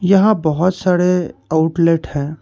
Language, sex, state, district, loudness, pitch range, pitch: Hindi, male, Karnataka, Bangalore, -16 LUFS, 160-185 Hz, 170 Hz